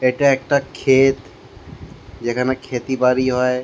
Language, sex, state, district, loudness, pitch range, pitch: Bengali, male, West Bengal, Jalpaiguri, -18 LUFS, 125-130 Hz, 130 Hz